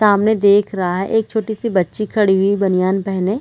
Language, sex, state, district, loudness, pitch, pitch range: Hindi, female, Chhattisgarh, Raigarh, -16 LUFS, 200 Hz, 190-215 Hz